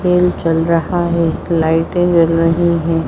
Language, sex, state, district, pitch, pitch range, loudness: Hindi, female, Bihar, Begusarai, 170 Hz, 165-175 Hz, -14 LUFS